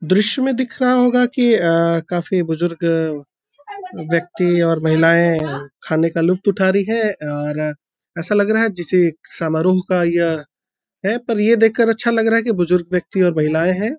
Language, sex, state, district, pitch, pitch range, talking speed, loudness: Hindi, male, Uttar Pradesh, Deoria, 180 Hz, 165-225 Hz, 185 wpm, -17 LUFS